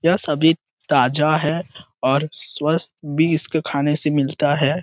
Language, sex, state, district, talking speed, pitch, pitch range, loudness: Hindi, male, Bihar, Jamui, 150 wpm, 155 Hz, 145-160 Hz, -16 LUFS